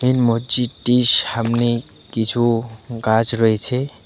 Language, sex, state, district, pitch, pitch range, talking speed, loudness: Bengali, male, West Bengal, Alipurduar, 115 Hz, 115-125 Hz, 90 wpm, -17 LUFS